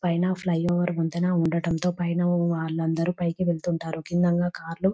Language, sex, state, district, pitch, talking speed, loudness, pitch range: Telugu, female, Telangana, Nalgonda, 175 Hz, 170 wpm, -25 LUFS, 165-175 Hz